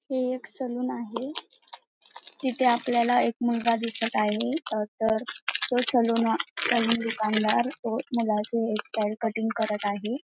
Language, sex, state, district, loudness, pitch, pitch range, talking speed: Marathi, female, Maharashtra, Pune, -25 LUFS, 230 Hz, 220-245 Hz, 130 wpm